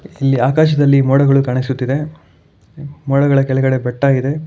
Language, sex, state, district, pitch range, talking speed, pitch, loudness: Kannada, male, Karnataka, Bangalore, 130-145 Hz, 105 wpm, 135 Hz, -14 LUFS